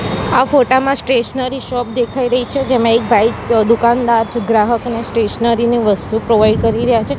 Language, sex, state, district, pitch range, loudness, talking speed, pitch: Gujarati, female, Gujarat, Gandhinagar, 225-250 Hz, -14 LUFS, 175 wpm, 235 Hz